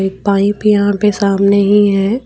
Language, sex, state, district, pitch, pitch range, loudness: Hindi, female, Jharkhand, Deoghar, 200 Hz, 200-205 Hz, -12 LUFS